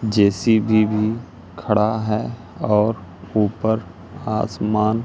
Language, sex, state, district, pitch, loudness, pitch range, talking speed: Hindi, male, Madhya Pradesh, Katni, 105 Hz, -20 LUFS, 100-110 Hz, 85 wpm